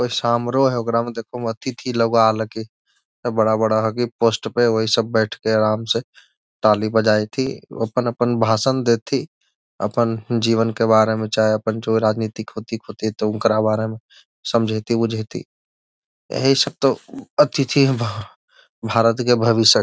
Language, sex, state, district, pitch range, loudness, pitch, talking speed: Magahi, male, Bihar, Gaya, 110-120 Hz, -19 LUFS, 115 Hz, 125 wpm